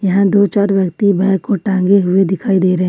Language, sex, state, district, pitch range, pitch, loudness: Hindi, female, Jharkhand, Ranchi, 190-200 Hz, 195 Hz, -14 LUFS